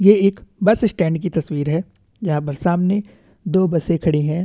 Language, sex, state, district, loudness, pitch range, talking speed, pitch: Hindi, male, Chhattisgarh, Bastar, -19 LUFS, 160-195 Hz, 190 wpm, 175 Hz